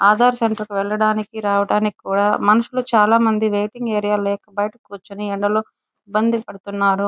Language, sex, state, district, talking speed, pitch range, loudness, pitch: Telugu, female, Andhra Pradesh, Chittoor, 125 wpm, 200-220 Hz, -19 LUFS, 210 Hz